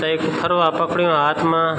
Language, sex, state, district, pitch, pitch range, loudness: Garhwali, male, Uttarakhand, Tehri Garhwal, 165 Hz, 160-170 Hz, -18 LUFS